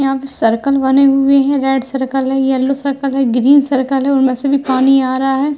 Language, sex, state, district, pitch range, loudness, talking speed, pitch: Hindi, female, Uttar Pradesh, Hamirpur, 265-275 Hz, -13 LUFS, 235 wpm, 270 Hz